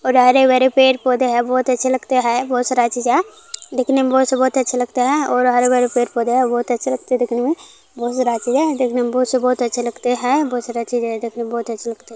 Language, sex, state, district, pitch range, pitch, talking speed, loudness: Maithili, female, Bihar, Kishanganj, 240-260 Hz, 250 Hz, 265 wpm, -17 LUFS